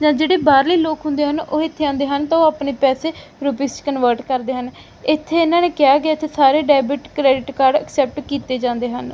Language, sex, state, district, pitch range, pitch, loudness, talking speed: Punjabi, female, Punjab, Fazilka, 270-310 Hz, 285 Hz, -17 LUFS, 225 wpm